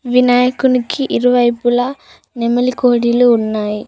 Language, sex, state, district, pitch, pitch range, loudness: Telugu, female, Telangana, Mahabubabad, 245 Hz, 235-250 Hz, -14 LUFS